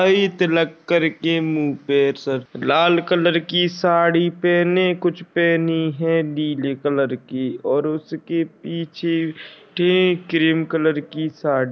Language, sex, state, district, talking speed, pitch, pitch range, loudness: Hindi, male, Chhattisgarh, Bastar, 140 wpm, 165 Hz, 155-175 Hz, -20 LUFS